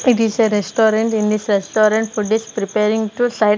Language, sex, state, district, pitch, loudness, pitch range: English, female, Punjab, Kapurthala, 215 Hz, -17 LUFS, 210-225 Hz